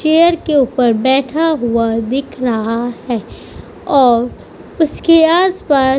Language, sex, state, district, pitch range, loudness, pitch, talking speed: Hindi, female, Uttar Pradesh, Budaun, 240-320 Hz, -14 LUFS, 265 Hz, 120 wpm